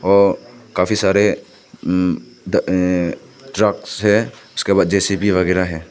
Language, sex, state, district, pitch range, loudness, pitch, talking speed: Hindi, male, Arunachal Pradesh, Papum Pare, 90-105 Hz, -17 LUFS, 100 Hz, 130 wpm